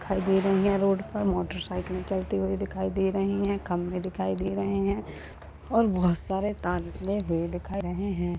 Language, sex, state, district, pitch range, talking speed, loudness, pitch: Hindi, female, Uttarakhand, Tehri Garhwal, 175-195 Hz, 165 wpm, -28 LUFS, 190 Hz